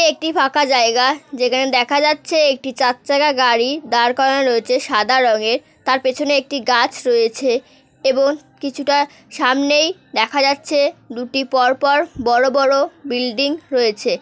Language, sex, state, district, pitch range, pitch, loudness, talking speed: Bengali, female, West Bengal, North 24 Parganas, 250-285 Hz, 270 Hz, -16 LUFS, 130 wpm